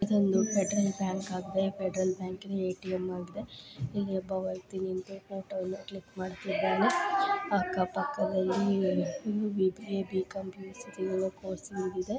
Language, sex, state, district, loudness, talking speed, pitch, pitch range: Kannada, female, Karnataka, Raichur, -32 LUFS, 115 wpm, 190 Hz, 185-195 Hz